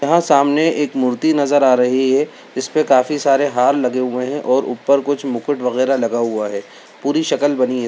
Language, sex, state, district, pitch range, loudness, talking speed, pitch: Hindi, male, Bihar, Bhagalpur, 125-145 Hz, -16 LUFS, 205 wpm, 135 Hz